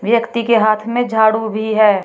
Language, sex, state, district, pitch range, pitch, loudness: Hindi, female, Uttar Pradesh, Shamli, 215-230 Hz, 220 Hz, -15 LUFS